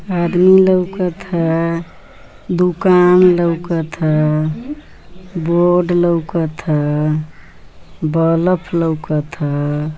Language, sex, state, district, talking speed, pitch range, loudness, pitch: Bhojpuri, female, Uttar Pradesh, Ghazipur, 70 wpm, 155-180 Hz, -15 LUFS, 170 Hz